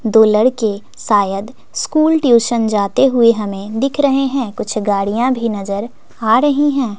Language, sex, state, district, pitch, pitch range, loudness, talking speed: Hindi, female, Bihar, West Champaran, 230 Hz, 210-270 Hz, -15 LUFS, 155 wpm